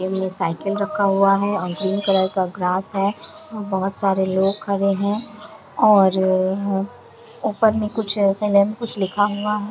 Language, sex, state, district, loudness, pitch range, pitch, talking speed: Hindi, female, Bihar, Kishanganj, -19 LUFS, 190-210 Hz, 200 Hz, 155 wpm